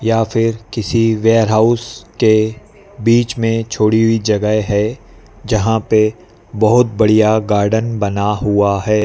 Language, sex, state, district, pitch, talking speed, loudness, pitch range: Hindi, male, Madhya Pradesh, Dhar, 110 Hz, 125 wpm, -14 LUFS, 105-115 Hz